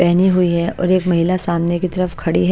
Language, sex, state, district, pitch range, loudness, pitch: Hindi, female, Bihar, Kaimur, 170-185 Hz, -17 LUFS, 180 Hz